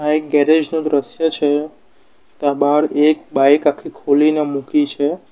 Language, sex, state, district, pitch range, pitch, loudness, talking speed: Gujarati, male, Gujarat, Valsad, 145-155 Hz, 150 Hz, -16 LUFS, 160 wpm